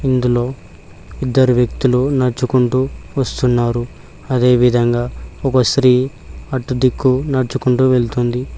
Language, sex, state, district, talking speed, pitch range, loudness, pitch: Telugu, male, Telangana, Mahabubabad, 85 wpm, 120-130 Hz, -16 LUFS, 125 Hz